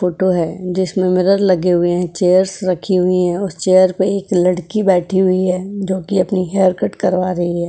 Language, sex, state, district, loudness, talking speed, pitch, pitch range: Hindi, female, Uttar Pradesh, Etah, -15 LUFS, 205 wpm, 185 Hz, 180-190 Hz